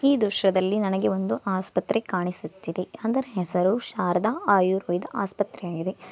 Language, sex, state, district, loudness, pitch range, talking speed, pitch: Kannada, female, Karnataka, Dakshina Kannada, -25 LUFS, 180-205 Hz, 110 wpm, 190 Hz